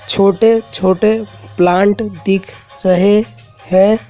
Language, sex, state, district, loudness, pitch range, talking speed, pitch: Hindi, male, Madhya Pradesh, Dhar, -13 LUFS, 185-215 Hz, 90 wpm, 195 Hz